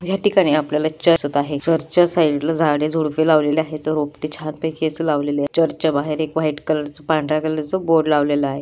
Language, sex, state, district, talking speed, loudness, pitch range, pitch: Marathi, female, Maharashtra, Pune, 195 wpm, -19 LUFS, 150-160 Hz, 155 Hz